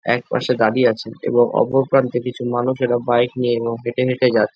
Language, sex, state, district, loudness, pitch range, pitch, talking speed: Bengali, male, West Bengal, Jhargram, -18 LUFS, 120-125 Hz, 120 Hz, 185 wpm